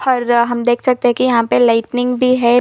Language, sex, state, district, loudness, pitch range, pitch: Hindi, female, Chhattisgarh, Bilaspur, -14 LUFS, 240-255 Hz, 245 Hz